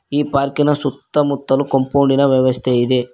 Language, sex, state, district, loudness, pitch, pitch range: Kannada, male, Karnataka, Koppal, -16 LUFS, 140 Hz, 130-140 Hz